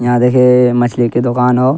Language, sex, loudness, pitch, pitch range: Angika, male, -11 LUFS, 125 Hz, 120-125 Hz